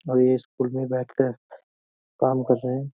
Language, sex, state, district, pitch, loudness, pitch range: Hindi, male, Uttar Pradesh, Jyotiba Phule Nagar, 130 Hz, -24 LUFS, 125-130 Hz